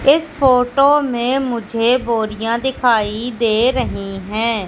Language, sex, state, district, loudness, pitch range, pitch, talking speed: Hindi, female, Madhya Pradesh, Katni, -16 LUFS, 225-260 Hz, 240 Hz, 115 wpm